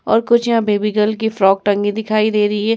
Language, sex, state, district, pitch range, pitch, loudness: Hindi, female, Uttar Pradesh, Muzaffarnagar, 205-220 Hz, 215 Hz, -16 LUFS